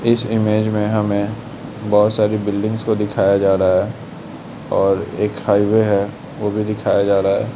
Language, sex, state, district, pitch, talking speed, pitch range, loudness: Hindi, male, Bihar, Jamui, 105 Hz, 175 wpm, 100-110 Hz, -17 LUFS